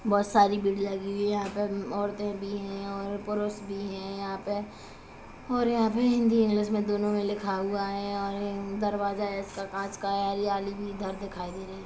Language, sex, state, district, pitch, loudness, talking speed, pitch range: Hindi, female, Chhattisgarh, Kabirdham, 200 Hz, -29 LUFS, 200 wpm, 195-205 Hz